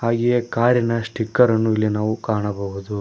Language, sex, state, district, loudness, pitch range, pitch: Kannada, male, Karnataka, Koppal, -20 LUFS, 105-115 Hz, 110 Hz